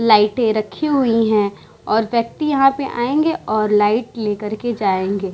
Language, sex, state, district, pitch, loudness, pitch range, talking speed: Hindi, female, Bihar, Vaishali, 225 Hz, -18 LUFS, 210-250 Hz, 155 wpm